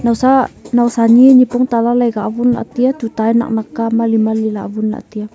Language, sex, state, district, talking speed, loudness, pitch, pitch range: Wancho, female, Arunachal Pradesh, Longding, 215 wpm, -13 LUFS, 230 Hz, 220-245 Hz